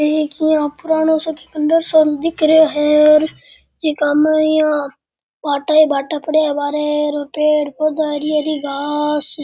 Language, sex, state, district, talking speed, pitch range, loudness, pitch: Rajasthani, male, Rajasthan, Nagaur, 150 wpm, 295-310 Hz, -16 LUFS, 305 Hz